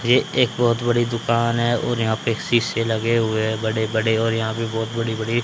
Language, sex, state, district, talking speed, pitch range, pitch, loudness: Hindi, male, Haryana, Charkhi Dadri, 230 wpm, 110-120 Hz, 115 Hz, -21 LUFS